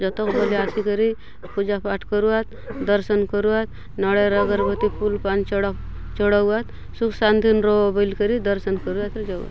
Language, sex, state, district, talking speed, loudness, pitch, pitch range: Halbi, female, Chhattisgarh, Bastar, 125 wpm, -21 LUFS, 205 Hz, 200-215 Hz